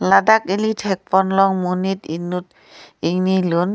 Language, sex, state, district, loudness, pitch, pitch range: Karbi, female, Assam, Karbi Anglong, -18 LUFS, 190 Hz, 180-195 Hz